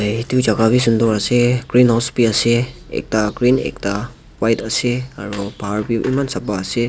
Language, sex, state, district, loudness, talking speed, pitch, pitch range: Nagamese, male, Nagaland, Dimapur, -17 LUFS, 175 wpm, 115 Hz, 105-125 Hz